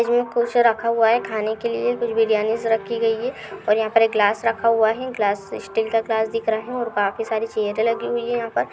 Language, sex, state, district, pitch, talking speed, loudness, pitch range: Hindi, female, Uttar Pradesh, Hamirpur, 225 Hz, 255 wpm, -21 LUFS, 220-235 Hz